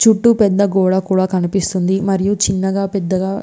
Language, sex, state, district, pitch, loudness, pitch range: Telugu, female, Andhra Pradesh, Visakhapatnam, 195 Hz, -15 LUFS, 185-200 Hz